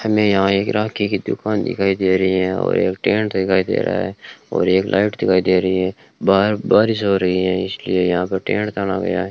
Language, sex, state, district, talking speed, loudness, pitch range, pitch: Hindi, male, Rajasthan, Bikaner, 240 wpm, -18 LUFS, 95-105 Hz, 95 Hz